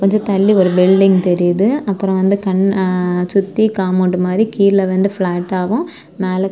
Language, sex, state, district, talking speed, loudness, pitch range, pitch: Tamil, female, Tamil Nadu, Kanyakumari, 145 wpm, -14 LUFS, 185-200 Hz, 195 Hz